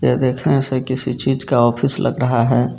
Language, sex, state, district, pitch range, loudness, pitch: Hindi, male, Jharkhand, Garhwa, 120-135 Hz, -17 LUFS, 130 Hz